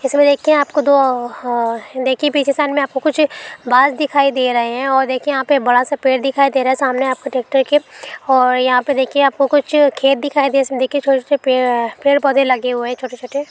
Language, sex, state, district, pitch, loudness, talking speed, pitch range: Hindi, female, Chhattisgarh, Balrampur, 270 Hz, -15 LUFS, 230 wpm, 255-285 Hz